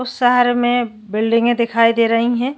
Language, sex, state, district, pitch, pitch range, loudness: Hindi, female, Uttarakhand, Tehri Garhwal, 240 Hz, 230-245 Hz, -16 LUFS